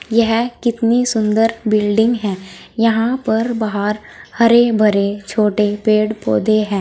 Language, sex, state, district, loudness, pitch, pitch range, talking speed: Hindi, female, Uttar Pradesh, Saharanpur, -16 LUFS, 220 Hz, 210-230 Hz, 125 wpm